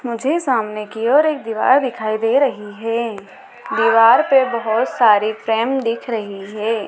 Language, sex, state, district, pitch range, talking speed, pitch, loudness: Hindi, female, Madhya Pradesh, Dhar, 215-260 Hz, 155 wpm, 230 Hz, -17 LUFS